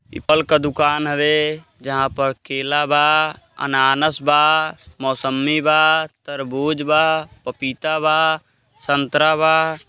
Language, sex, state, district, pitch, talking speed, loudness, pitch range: Bhojpuri, male, Uttar Pradesh, Gorakhpur, 150 Hz, 115 wpm, -18 LUFS, 135-155 Hz